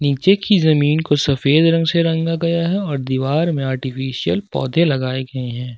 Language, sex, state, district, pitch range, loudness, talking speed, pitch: Hindi, male, Jharkhand, Ranchi, 130-165 Hz, -17 LUFS, 185 wpm, 145 Hz